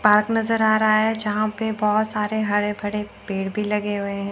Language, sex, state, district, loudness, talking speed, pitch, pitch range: Hindi, female, Chandigarh, Chandigarh, -22 LUFS, 220 wpm, 210 Hz, 205-215 Hz